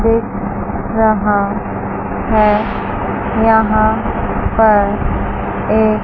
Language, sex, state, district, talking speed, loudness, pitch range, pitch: Hindi, female, Chandigarh, Chandigarh, 60 wpm, -15 LUFS, 205-220 Hz, 215 Hz